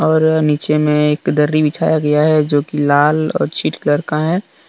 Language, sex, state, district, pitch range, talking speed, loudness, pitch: Hindi, male, Jharkhand, Deoghar, 150-155 Hz, 205 wpm, -15 LUFS, 150 Hz